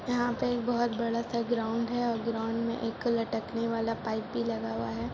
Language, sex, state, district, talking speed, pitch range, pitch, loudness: Hindi, female, Bihar, Gaya, 210 wpm, 225-235 Hz, 230 Hz, -31 LUFS